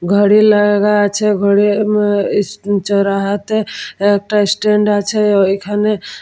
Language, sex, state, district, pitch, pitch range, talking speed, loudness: Bengali, female, West Bengal, Purulia, 205 Hz, 200-210 Hz, 115 wpm, -13 LUFS